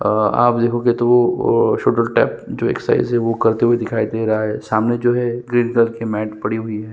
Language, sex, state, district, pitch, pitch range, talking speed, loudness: Hindi, male, Chhattisgarh, Sukma, 115 Hz, 110-120 Hz, 225 wpm, -17 LUFS